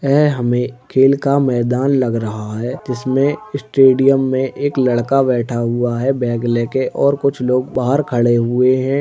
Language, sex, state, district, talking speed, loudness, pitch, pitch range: Hindi, male, Uttar Pradesh, Deoria, 165 wpm, -16 LUFS, 130 Hz, 120-135 Hz